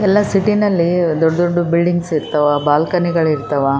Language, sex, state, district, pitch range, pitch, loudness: Kannada, female, Karnataka, Raichur, 150-175 Hz, 170 Hz, -15 LUFS